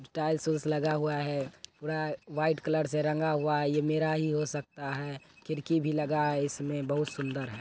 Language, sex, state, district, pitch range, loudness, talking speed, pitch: Angika, male, Bihar, Begusarai, 145-155 Hz, -31 LUFS, 215 wpm, 150 Hz